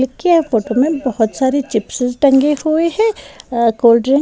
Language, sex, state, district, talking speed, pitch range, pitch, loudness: Hindi, female, Bihar, West Champaran, 185 wpm, 235-310 Hz, 265 Hz, -15 LUFS